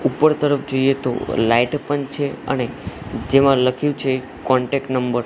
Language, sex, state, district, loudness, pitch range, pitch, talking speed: Gujarati, male, Gujarat, Gandhinagar, -19 LUFS, 130-145 Hz, 135 Hz, 160 wpm